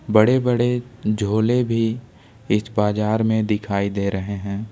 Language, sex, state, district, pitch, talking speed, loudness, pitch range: Hindi, male, Jharkhand, Ranchi, 110 Hz, 140 wpm, -21 LUFS, 105-120 Hz